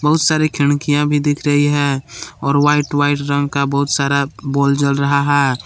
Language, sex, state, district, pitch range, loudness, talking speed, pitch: Hindi, male, Jharkhand, Palamu, 140-145 Hz, -16 LUFS, 190 wpm, 145 Hz